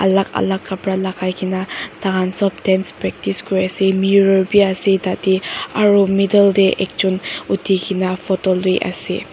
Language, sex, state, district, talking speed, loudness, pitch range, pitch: Nagamese, female, Nagaland, Dimapur, 150 wpm, -17 LUFS, 185-195 Hz, 190 Hz